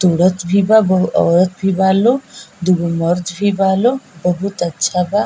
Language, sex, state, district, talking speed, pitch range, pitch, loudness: Bhojpuri, female, Bihar, East Champaran, 180 wpm, 180-200 Hz, 185 Hz, -15 LUFS